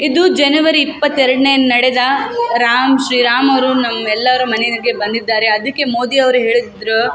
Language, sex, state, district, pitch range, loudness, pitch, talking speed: Kannada, female, Karnataka, Raichur, 235-275 Hz, -13 LUFS, 255 Hz, 135 wpm